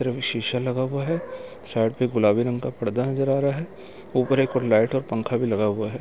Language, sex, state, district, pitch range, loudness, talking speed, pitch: Hindi, male, Uttar Pradesh, Etah, 115-135 Hz, -24 LUFS, 230 wpm, 125 Hz